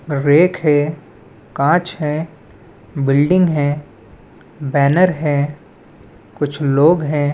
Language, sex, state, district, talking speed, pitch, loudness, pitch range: Hindi, male, Chhattisgarh, Balrampur, 90 wpm, 145 Hz, -16 LUFS, 140-155 Hz